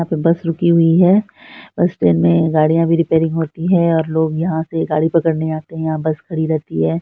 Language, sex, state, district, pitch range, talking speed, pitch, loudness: Hindi, female, Bihar, Saharsa, 155-165 Hz, 230 wpm, 160 Hz, -16 LUFS